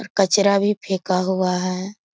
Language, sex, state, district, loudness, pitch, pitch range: Hindi, female, Bihar, East Champaran, -20 LUFS, 190 Hz, 185-200 Hz